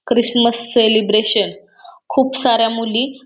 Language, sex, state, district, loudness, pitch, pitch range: Marathi, female, Maharashtra, Pune, -15 LUFS, 235 Hz, 225-245 Hz